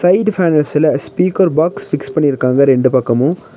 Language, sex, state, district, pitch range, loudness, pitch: Tamil, male, Tamil Nadu, Nilgiris, 135-180 Hz, -14 LUFS, 155 Hz